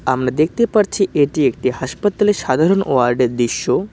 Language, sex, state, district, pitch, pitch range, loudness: Bengali, male, West Bengal, Cooch Behar, 150 Hz, 130-195 Hz, -17 LUFS